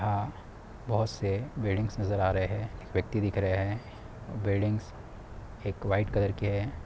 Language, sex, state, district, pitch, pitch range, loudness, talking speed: Hindi, male, Bihar, Sitamarhi, 105 Hz, 100-110 Hz, -31 LUFS, 155 wpm